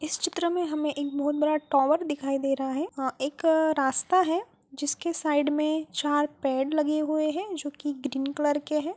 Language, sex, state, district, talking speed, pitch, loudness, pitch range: Hindi, female, Bihar, Gopalganj, 200 wpm, 300 Hz, -27 LUFS, 285-315 Hz